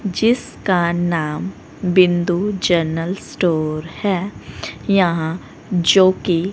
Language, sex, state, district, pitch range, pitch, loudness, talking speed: Hindi, female, Haryana, Rohtak, 170-190 Hz, 180 Hz, -18 LUFS, 75 wpm